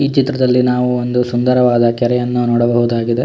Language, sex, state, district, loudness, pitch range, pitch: Kannada, male, Karnataka, Shimoga, -14 LUFS, 120-125 Hz, 125 Hz